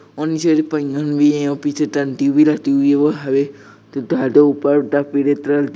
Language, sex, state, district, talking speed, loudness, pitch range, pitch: Hindi, female, Bihar, Purnia, 175 wpm, -16 LUFS, 140-145 Hz, 145 Hz